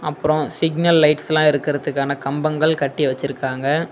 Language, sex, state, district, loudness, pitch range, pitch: Tamil, male, Tamil Nadu, Nilgiris, -19 LUFS, 140-155 Hz, 150 Hz